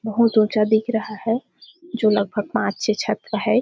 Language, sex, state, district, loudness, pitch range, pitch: Hindi, female, Chhattisgarh, Sarguja, -21 LUFS, 215-230 Hz, 220 Hz